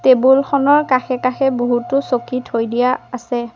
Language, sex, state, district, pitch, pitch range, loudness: Assamese, female, Assam, Sonitpur, 255 Hz, 245-270 Hz, -16 LUFS